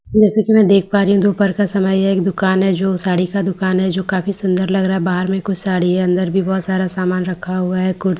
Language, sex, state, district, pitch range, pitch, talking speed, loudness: Hindi, female, Bihar, Katihar, 185-195 Hz, 190 Hz, 300 wpm, -16 LUFS